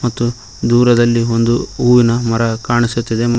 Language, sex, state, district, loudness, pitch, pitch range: Kannada, male, Karnataka, Koppal, -14 LUFS, 120 Hz, 115-120 Hz